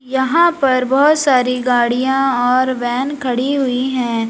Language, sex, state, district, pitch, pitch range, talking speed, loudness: Hindi, female, Uttar Pradesh, Lalitpur, 255 Hz, 250-270 Hz, 140 wpm, -15 LUFS